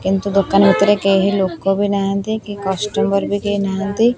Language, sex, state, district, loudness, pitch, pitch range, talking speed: Odia, female, Odisha, Khordha, -17 LUFS, 200 Hz, 195-205 Hz, 170 wpm